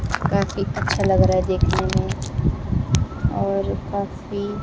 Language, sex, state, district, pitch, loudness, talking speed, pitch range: Hindi, female, Maharashtra, Mumbai Suburban, 100 Hz, -22 LUFS, 115 wpm, 95-115 Hz